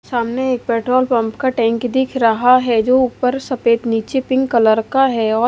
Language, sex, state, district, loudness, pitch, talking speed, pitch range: Hindi, female, Odisha, Malkangiri, -16 LUFS, 245 Hz, 195 wpm, 230-260 Hz